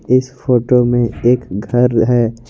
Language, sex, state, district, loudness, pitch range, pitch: Hindi, male, Jharkhand, Garhwa, -14 LUFS, 115-125 Hz, 120 Hz